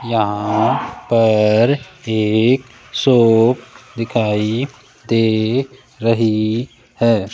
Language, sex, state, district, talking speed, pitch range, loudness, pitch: Hindi, male, Rajasthan, Jaipur, 65 wpm, 110-125 Hz, -16 LUFS, 115 Hz